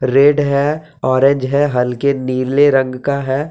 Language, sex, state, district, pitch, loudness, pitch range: Hindi, male, Jharkhand, Deoghar, 140 Hz, -15 LUFS, 130-145 Hz